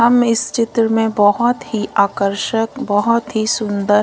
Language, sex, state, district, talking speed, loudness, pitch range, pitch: Hindi, female, Punjab, Kapurthala, 150 wpm, -16 LUFS, 205-230 Hz, 225 Hz